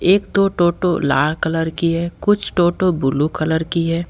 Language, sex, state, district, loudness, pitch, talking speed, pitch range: Hindi, male, Jharkhand, Ranchi, -18 LUFS, 170 Hz, 190 wpm, 160-175 Hz